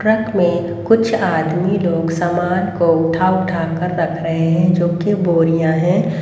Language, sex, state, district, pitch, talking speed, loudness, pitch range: Hindi, female, Haryana, Rohtak, 175 Hz, 165 wpm, -16 LUFS, 165-185 Hz